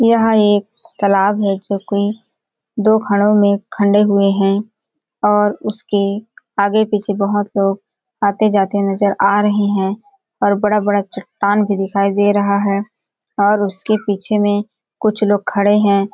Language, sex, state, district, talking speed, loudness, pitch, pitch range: Hindi, female, Chhattisgarh, Balrampur, 150 wpm, -16 LUFS, 205 Hz, 200-210 Hz